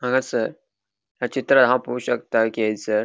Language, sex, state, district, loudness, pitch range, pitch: Konkani, male, Goa, North and South Goa, -21 LUFS, 110-125 Hz, 110 Hz